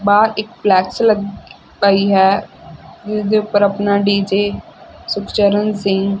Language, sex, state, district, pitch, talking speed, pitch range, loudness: Punjabi, female, Punjab, Fazilka, 205 Hz, 105 wpm, 200-210 Hz, -15 LUFS